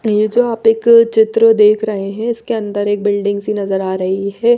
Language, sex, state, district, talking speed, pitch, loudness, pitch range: Hindi, female, Maharashtra, Mumbai Suburban, 225 wpm, 215 Hz, -14 LUFS, 205-230 Hz